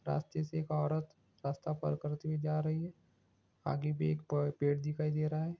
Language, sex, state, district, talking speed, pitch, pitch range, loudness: Hindi, male, Andhra Pradesh, Srikakulam, 205 wpm, 150 Hz, 145-155 Hz, -36 LUFS